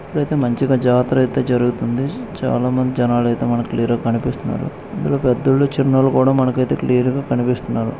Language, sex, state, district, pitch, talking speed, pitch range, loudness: Telugu, male, Andhra Pradesh, Krishna, 125 Hz, 160 wpm, 120-135 Hz, -18 LUFS